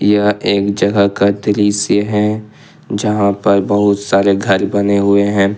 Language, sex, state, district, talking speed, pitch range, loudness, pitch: Hindi, male, Jharkhand, Ranchi, 150 wpm, 100-105 Hz, -14 LUFS, 100 Hz